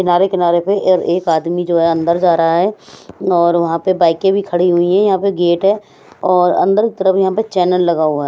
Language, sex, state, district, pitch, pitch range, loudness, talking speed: Hindi, female, Odisha, Sambalpur, 180 Hz, 170-190 Hz, -14 LUFS, 245 wpm